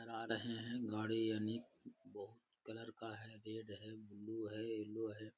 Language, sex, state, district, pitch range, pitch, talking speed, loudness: Hindi, male, Bihar, Gaya, 110-115 Hz, 110 Hz, 165 wpm, -45 LUFS